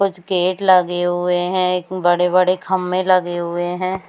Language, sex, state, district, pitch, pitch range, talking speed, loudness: Hindi, female, Chhattisgarh, Bilaspur, 180 Hz, 175-185 Hz, 145 wpm, -17 LUFS